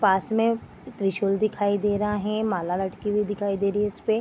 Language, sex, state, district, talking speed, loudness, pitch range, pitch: Hindi, female, Bihar, Vaishali, 215 wpm, -25 LUFS, 200-215 Hz, 205 Hz